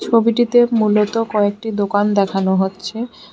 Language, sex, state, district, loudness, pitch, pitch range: Bengali, female, Tripura, West Tripura, -17 LUFS, 210 Hz, 205-230 Hz